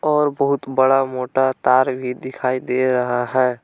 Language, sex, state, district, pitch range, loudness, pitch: Hindi, male, Jharkhand, Palamu, 125-135 Hz, -19 LUFS, 130 Hz